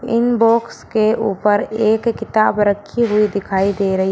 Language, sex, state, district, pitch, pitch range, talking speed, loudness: Hindi, female, Uttar Pradesh, Shamli, 215 Hz, 205-230 Hz, 160 wpm, -16 LUFS